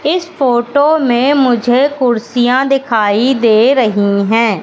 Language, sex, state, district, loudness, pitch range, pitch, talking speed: Hindi, female, Madhya Pradesh, Katni, -12 LUFS, 230-275 Hz, 245 Hz, 115 wpm